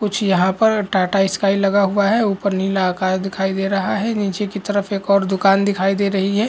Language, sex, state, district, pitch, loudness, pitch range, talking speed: Hindi, male, Bihar, Lakhisarai, 195 Hz, -18 LUFS, 195-205 Hz, 230 wpm